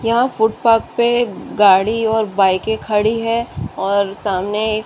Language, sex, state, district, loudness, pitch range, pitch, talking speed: Hindi, female, Uttar Pradesh, Muzaffarnagar, -16 LUFS, 200-230 Hz, 220 Hz, 135 wpm